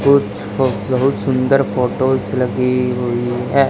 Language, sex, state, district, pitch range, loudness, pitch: Hindi, male, Haryana, Charkhi Dadri, 125-130 Hz, -17 LUFS, 125 Hz